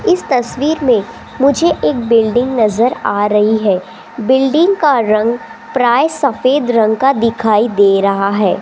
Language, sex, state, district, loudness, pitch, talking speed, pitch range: Hindi, female, Rajasthan, Jaipur, -13 LUFS, 235 Hz, 145 wpm, 215-275 Hz